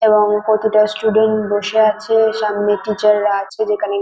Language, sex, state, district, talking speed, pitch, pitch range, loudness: Bengali, female, West Bengal, North 24 Parganas, 165 wpm, 215 Hz, 210-220 Hz, -15 LUFS